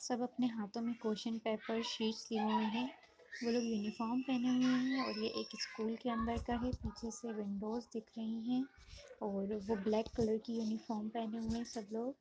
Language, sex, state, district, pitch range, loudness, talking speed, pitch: Kumaoni, female, Uttarakhand, Uttarkashi, 220-240 Hz, -39 LUFS, 200 wpm, 230 Hz